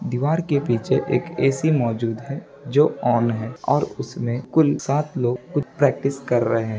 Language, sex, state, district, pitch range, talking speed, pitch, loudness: Hindi, male, Bihar, Gaya, 120-145 Hz, 175 wpm, 135 Hz, -21 LUFS